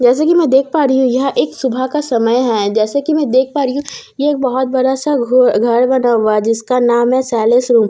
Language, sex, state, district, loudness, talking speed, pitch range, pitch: Hindi, female, Bihar, Katihar, -13 LUFS, 265 wpm, 235-270 Hz, 255 Hz